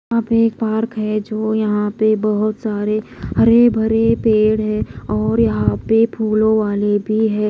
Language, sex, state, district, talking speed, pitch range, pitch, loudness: Hindi, female, Odisha, Malkangiri, 170 wpm, 210-220 Hz, 215 Hz, -17 LUFS